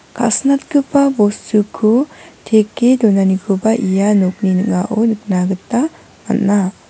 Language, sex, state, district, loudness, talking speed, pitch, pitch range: Garo, female, Meghalaya, West Garo Hills, -15 LUFS, 85 wpm, 215 Hz, 195-235 Hz